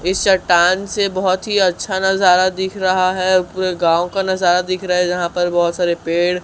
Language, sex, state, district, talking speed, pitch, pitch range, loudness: Hindi, male, Chhattisgarh, Raipur, 205 wpm, 185 Hz, 175-190 Hz, -16 LUFS